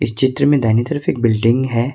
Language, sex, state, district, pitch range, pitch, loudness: Hindi, male, Jharkhand, Ranchi, 115-145 Hz, 130 Hz, -16 LUFS